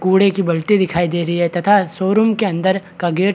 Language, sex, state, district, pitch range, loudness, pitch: Hindi, male, Chhattisgarh, Rajnandgaon, 175-195 Hz, -16 LUFS, 190 Hz